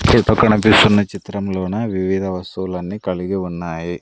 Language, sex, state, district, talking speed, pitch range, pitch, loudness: Telugu, male, Andhra Pradesh, Sri Satya Sai, 120 wpm, 90-105 Hz, 95 Hz, -17 LUFS